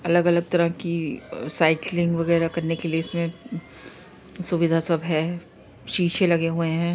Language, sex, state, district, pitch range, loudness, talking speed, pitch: Hindi, female, Uttar Pradesh, Varanasi, 165-175 Hz, -23 LUFS, 155 wpm, 170 Hz